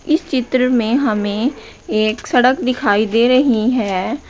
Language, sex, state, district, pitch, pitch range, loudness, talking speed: Hindi, female, Uttar Pradesh, Shamli, 245 Hz, 215-260 Hz, -16 LUFS, 140 wpm